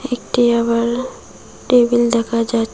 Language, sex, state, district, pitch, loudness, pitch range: Bengali, female, West Bengal, Cooch Behar, 235 Hz, -16 LUFS, 230-245 Hz